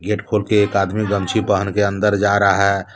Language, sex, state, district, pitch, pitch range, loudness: Hindi, male, Jharkhand, Deoghar, 100 Hz, 100-105 Hz, -17 LUFS